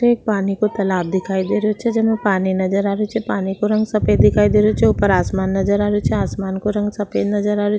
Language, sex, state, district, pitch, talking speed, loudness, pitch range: Rajasthani, female, Rajasthan, Nagaur, 200 Hz, 270 wpm, -18 LUFS, 190-210 Hz